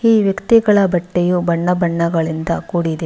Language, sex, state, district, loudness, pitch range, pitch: Kannada, female, Karnataka, Bangalore, -16 LUFS, 170-195 Hz, 175 Hz